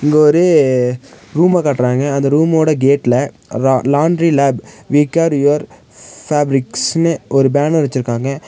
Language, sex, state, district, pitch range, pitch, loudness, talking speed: Tamil, female, Tamil Nadu, Nilgiris, 130-155 Hz, 140 Hz, -14 LUFS, 120 wpm